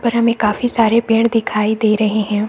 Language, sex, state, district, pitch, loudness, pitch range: Hindi, female, Bihar, Saharsa, 225 Hz, -15 LUFS, 215-230 Hz